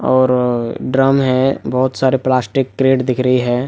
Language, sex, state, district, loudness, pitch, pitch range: Hindi, male, Jharkhand, Jamtara, -15 LUFS, 130 Hz, 125-130 Hz